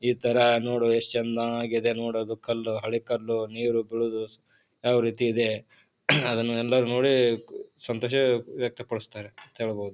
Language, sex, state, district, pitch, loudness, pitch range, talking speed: Kannada, male, Karnataka, Bijapur, 115 Hz, -26 LUFS, 115-120 Hz, 125 wpm